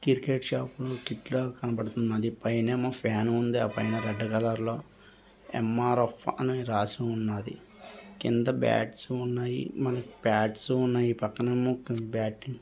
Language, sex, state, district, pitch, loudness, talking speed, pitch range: Telugu, male, Andhra Pradesh, Visakhapatnam, 120 Hz, -30 LUFS, 135 wpm, 110-125 Hz